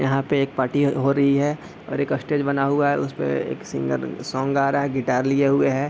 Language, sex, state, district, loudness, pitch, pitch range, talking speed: Hindi, male, Uttar Pradesh, Deoria, -22 LUFS, 140 Hz, 130-140 Hz, 255 wpm